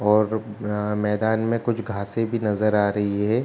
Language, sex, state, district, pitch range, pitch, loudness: Hindi, male, Bihar, Kishanganj, 105-115 Hz, 105 Hz, -23 LUFS